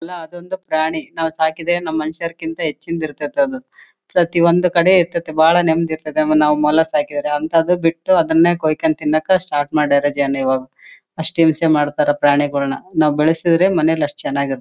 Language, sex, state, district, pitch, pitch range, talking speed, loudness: Kannada, female, Karnataka, Bellary, 160 Hz, 150-170 Hz, 155 wpm, -17 LUFS